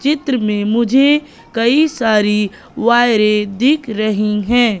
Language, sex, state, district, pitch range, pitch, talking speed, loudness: Hindi, female, Madhya Pradesh, Katni, 210-260 Hz, 230 Hz, 110 wpm, -14 LUFS